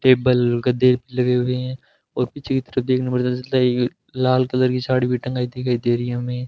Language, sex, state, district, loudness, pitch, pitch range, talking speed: Hindi, male, Rajasthan, Bikaner, -20 LUFS, 125 Hz, 125-130 Hz, 240 wpm